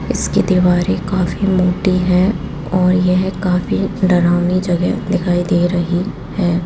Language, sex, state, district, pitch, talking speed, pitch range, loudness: Hindi, female, Rajasthan, Jaipur, 180 Hz, 125 wpm, 175-185 Hz, -16 LUFS